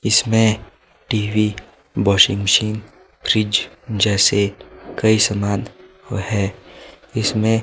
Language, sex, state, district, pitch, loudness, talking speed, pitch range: Hindi, male, Himachal Pradesh, Shimla, 105 Hz, -18 LUFS, 80 wpm, 100-110 Hz